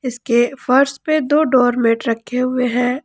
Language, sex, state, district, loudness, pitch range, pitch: Hindi, female, Jharkhand, Ranchi, -16 LUFS, 245-270 Hz, 250 Hz